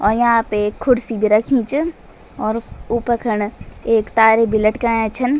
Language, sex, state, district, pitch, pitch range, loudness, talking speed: Garhwali, female, Uttarakhand, Tehri Garhwal, 230 Hz, 215-240 Hz, -17 LUFS, 175 wpm